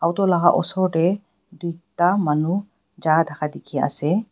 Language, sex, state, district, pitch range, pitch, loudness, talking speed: Nagamese, female, Nagaland, Dimapur, 165-190 Hz, 175 Hz, -21 LUFS, 140 wpm